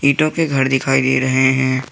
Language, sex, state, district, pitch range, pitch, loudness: Hindi, male, Jharkhand, Garhwa, 130-140 Hz, 135 Hz, -15 LUFS